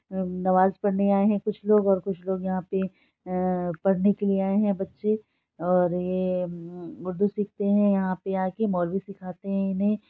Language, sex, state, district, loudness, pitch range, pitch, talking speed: Hindi, female, Bihar, Saharsa, -25 LUFS, 185-200 Hz, 195 Hz, 180 wpm